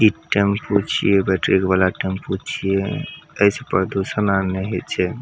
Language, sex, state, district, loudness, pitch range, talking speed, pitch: Maithili, male, Bihar, Samastipur, -20 LUFS, 95-105 Hz, 160 wpm, 100 Hz